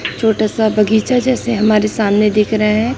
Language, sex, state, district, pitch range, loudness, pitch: Hindi, female, Chhattisgarh, Raipur, 210-225 Hz, -14 LUFS, 215 Hz